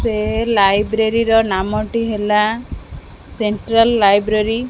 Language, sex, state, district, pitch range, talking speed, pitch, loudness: Odia, female, Odisha, Khordha, 210-225 Hz, 115 wpm, 215 Hz, -16 LUFS